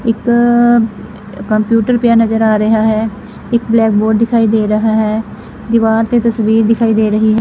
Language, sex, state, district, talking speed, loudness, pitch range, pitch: Punjabi, female, Punjab, Fazilka, 180 wpm, -12 LUFS, 215-230 Hz, 220 Hz